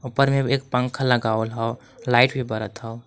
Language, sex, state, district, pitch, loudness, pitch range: Magahi, male, Jharkhand, Palamu, 125 Hz, -22 LUFS, 115-135 Hz